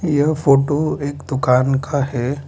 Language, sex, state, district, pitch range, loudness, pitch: Hindi, male, Mizoram, Aizawl, 135-145 Hz, -18 LUFS, 140 Hz